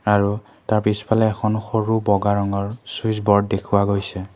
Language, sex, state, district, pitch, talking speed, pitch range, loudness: Assamese, male, Assam, Kamrup Metropolitan, 105 Hz, 135 wpm, 100-110 Hz, -20 LUFS